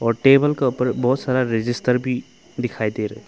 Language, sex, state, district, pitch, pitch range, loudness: Hindi, male, Arunachal Pradesh, Longding, 125 Hz, 115-130 Hz, -20 LUFS